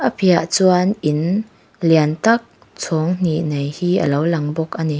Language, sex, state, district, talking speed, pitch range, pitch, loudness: Mizo, female, Mizoram, Aizawl, 180 wpm, 150-180 Hz, 165 Hz, -18 LUFS